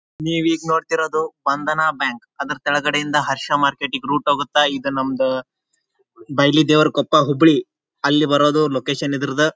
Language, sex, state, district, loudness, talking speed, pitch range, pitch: Kannada, male, Karnataka, Dharwad, -18 LUFS, 125 wpm, 140-155 Hz, 145 Hz